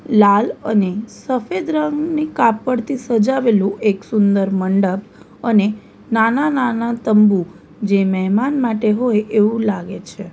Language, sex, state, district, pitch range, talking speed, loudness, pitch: Gujarati, female, Gujarat, Valsad, 200-245 Hz, 110 wpm, -17 LUFS, 220 Hz